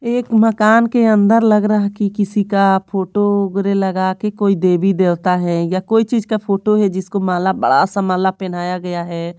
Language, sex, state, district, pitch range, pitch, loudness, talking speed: Hindi, female, Bihar, Patna, 185-210 Hz, 200 Hz, -15 LUFS, 200 wpm